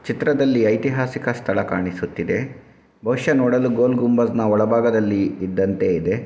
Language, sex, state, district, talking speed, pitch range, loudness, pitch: Kannada, male, Karnataka, Shimoga, 145 wpm, 100-125 Hz, -20 LUFS, 115 Hz